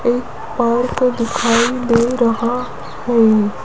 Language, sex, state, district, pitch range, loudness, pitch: Hindi, female, Rajasthan, Jaipur, 230-245 Hz, -16 LUFS, 235 Hz